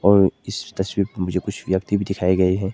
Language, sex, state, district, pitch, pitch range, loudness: Hindi, male, Arunachal Pradesh, Lower Dibang Valley, 95 Hz, 95-100 Hz, -21 LUFS